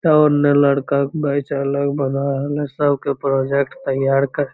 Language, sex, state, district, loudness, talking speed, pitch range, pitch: Magahi, female, Bihar, Lakhisarai, -18 LUFS, 185 wpm, 140-145 Hz, 140 Hz